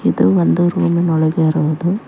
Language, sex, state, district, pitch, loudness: Kannada, female, Karnataka, Koppal, 155 Hz, -15 LUFS